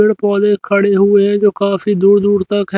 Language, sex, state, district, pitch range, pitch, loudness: Hindi, male, Haryana, Rohtak, 200-205 Hz, 200 Hz, -12 LUFS